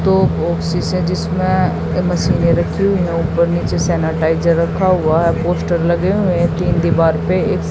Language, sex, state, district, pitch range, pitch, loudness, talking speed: Hindi, female, Haryana, Jhajjar, 165-180 Hz, 170 Hz, -15 LUFS, 180 wpm